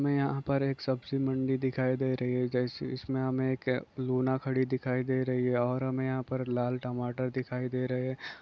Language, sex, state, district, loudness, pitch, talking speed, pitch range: Hindi, male, Chhattisgarh, Raigarh, -31 LUFS, 130 Hz, 215 wpm, 125-130 Hz